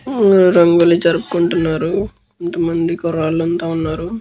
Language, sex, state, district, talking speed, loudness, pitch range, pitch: Telugu, male, Andhra Pradesh, Guntur, 130 wpm, -15 LUFS, 165-175 Hz, 170 Hz